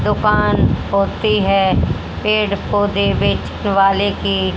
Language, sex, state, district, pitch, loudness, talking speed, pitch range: Hindi, female, Haryana, Jhajjar, 200 Hz, -16 LUFS, 105 wpm, 195-205 Hz